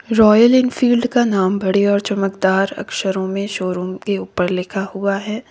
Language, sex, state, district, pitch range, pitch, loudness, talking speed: Hindi, female, Uttar Pradesh, Lalitpur, 190-220 Hz, 200 Hz, -17 LUFS, 165 wpm